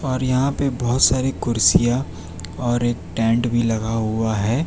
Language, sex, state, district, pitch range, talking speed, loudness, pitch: Hindi, male, Gujarat, Valsad, 110-130 Hz, 165 wpm, -20 LUFS, 120 Hz